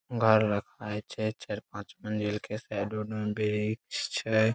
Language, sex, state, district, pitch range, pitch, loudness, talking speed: Maithili, male, Bihar, Saharsa, 105-110 Hz, 105 Hz, -31 LUFS, 160 wpm